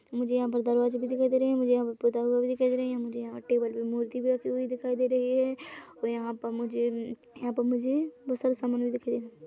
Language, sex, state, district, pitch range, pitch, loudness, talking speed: Hindi, female, Chhattisgarh, Korba, 235-255 Hz, 245 Hz, -29 LUFS, 270 wpm